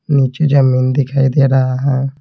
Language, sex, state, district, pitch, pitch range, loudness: Hindi, male, Bihar, Patna, 135 Hz, 130-140 Hz, -13 LUFS